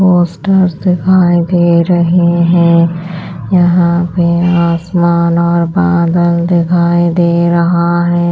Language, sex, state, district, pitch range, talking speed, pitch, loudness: Hindi, female, Punjab, Pathankot, 170-175 Hz, 100 wpm, 175 Hz, -10 LUFS